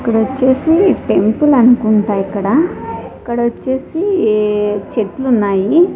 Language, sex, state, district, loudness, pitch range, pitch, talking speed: Telugu, female, Andhra Pradesh, Sri Satya Sai, -14 LUFS, 210-275 Hz, 235 Hz, 60 wpm